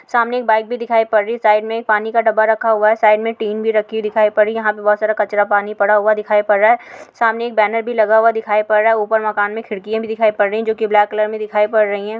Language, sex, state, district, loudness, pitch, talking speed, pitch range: Hindi, female, Uttar Pradesh, Hamirpur, -15 LUFS, 215 Hz, 325 wpm, 210-225 Hz